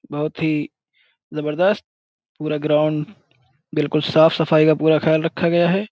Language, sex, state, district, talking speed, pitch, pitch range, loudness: Hindi, male, Uttar Pradesh, Budaun, 140 wpm, 155 Hz, 150-160 Hz, -19 LUFS